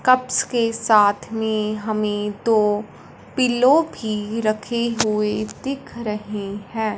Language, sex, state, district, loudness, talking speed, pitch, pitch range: Hindi, female, Punjab, Fazilka, -21 LUFS, 110 wpm, 215 Hz, 210-235 Hz